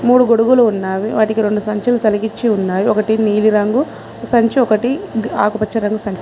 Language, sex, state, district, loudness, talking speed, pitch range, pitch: Telugu, female, Telangana, Mahabubabad, -15 LUFS, 135 wpm, 210-235 Hz, 215 Hz